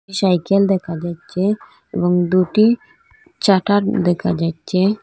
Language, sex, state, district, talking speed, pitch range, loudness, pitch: Bengali, female, Assam, Hailakandi, 95 wpm, 175-200 Hz, -18 LUFS, 190 Hz